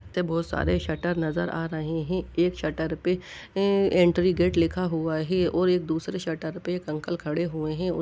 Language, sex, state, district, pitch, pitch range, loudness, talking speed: Hindi, male, Bihar, Lakhisarai, 170 Hz, 160-180 Hz, -26 LUFS, 200 wpm